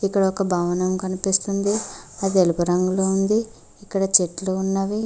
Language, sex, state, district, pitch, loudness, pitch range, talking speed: Telugu, female, Telangana, Mahabubabad, 195 Hz, -21 LUFS, 185-200 Hz, 130 wpm